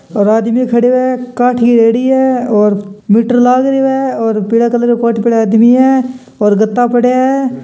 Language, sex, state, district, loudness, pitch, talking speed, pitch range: Hindi, male, Rajasthan, Churu, -11 LUFS, 240 Hz, 180 wpm, 225-255 Hz